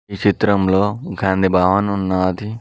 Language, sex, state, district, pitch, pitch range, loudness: Telugu, male, Telangana, Mahabubabad, 95 Hz, 95-100 Hz, -17 LUFS